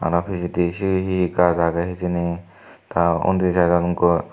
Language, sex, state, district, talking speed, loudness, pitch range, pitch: Chakma, male, Tripura, Dhalai, 165 wpm, -20 LUFS, 85-90 Hz, 90 Hz